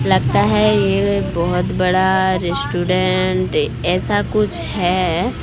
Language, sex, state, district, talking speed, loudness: Hindi, female, Odisha, Sambalpur, 100 wpm, -17 LUFS